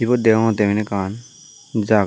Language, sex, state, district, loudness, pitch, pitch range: Chakma, male, Tripura, Dhalai, -19 LUFS, 110 Hz, 105-120 Hz